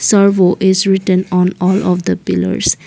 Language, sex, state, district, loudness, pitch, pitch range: English, female, Assam, Kamrup Metropolitan, -13 LUFS, 190 Hz, 180-195 Hz